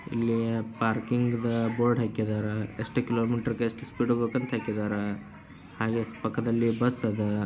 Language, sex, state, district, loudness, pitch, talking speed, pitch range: Kannada, male, Karnataka, Dharwad, -29 LUFS, 115 Hz, 135 wpm, 110-120 Hz